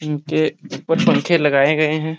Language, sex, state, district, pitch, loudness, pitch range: Hindi, male, Jharkhand, Jamtara, 155 Hz, -17 LUFS, 150-165 Hz